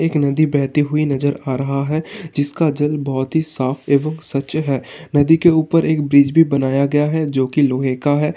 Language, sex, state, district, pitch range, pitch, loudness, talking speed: Hindi, male, Uttar Pradesh, Hamirpur, 140-155 Hz, 145 Hz, -17 LUFS, 210 wpm